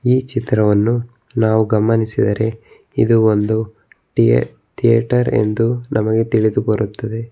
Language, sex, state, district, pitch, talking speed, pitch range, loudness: Kannada, male, Karnataka, Bangalore, 110 Hz, 100 wpm, 110-115 Hz, -17 LUFS